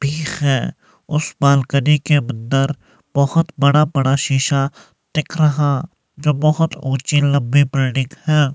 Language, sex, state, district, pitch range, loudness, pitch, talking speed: Hindi, male, Himachal Pradesh, Shimla, 135-150 Hz, -17 LUFS, 145 Hz, 125 wpm